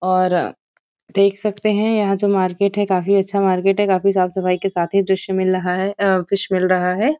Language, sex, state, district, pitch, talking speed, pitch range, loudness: Hindi, female, Uttar Pradesh, Varanasi, 195 Hz, 215 wpm, 185-200 Hz, -18 LUFS